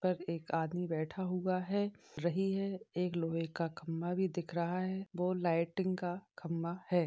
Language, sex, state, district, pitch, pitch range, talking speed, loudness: Hindi, female, Uttar Pradesh, Gorakhpur, 175 Hz, 170-185 Hz, 180 wpm, -37 LUFS